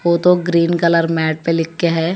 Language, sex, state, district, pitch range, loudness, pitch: Hindi, female, Telangana, Hyderabad, 165-170 Hz, -16 LUFS, 170 Hz